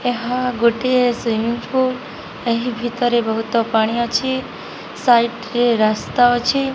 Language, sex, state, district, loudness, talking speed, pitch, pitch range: Odia, female, Odisha, Nuapada, -18 LUFS, 105 wpm, 240 Hz, 230-250 Hz